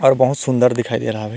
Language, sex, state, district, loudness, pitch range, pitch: Hindi, male, Chhattisgarh, Rajnandgaon, -17 LUFS, 115-130 Hz, 125 Hz